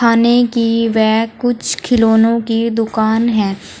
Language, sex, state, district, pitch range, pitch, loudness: Hindi, female, Uttar Pradesh, Saharanpur, 220-235 Hz, 230 Hz, -14 LUFS